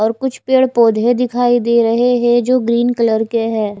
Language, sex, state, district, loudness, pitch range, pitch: Hindi, female, Maharashtra, Gondia, -14 LUFS, 225-245 Hz, 240 Hz